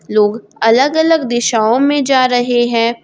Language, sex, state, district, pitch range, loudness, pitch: Hindi, female, Jharkhand, Garhwa, 225-270 Hz, -13 LUFS, 240 Hz